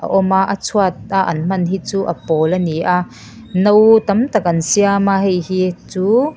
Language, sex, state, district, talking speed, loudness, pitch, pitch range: Mizo, female, Mizoram, Aizawl, 205 wpm, -15 LUFS, 190 Hz, 180-200 Hz